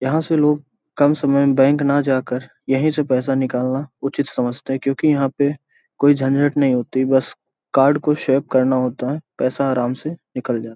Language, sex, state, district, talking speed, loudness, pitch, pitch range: Hindi, male, Bihar, Gopalganj, 195 wpm, -19 LUFS, 135 Hz, 130-145 Hz